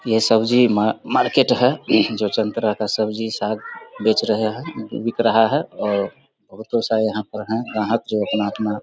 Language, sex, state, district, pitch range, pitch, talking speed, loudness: Hindi, male, Bihar, Samastipur, 105-115 Hz, 110 Hz, 170 wpm, -20 LUFS